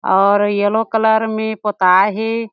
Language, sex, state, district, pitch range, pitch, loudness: Chhattisgarhi, female, Chhattisgarh, Jashpur, 205-220 Hz, 215 Hz, -15 LUFS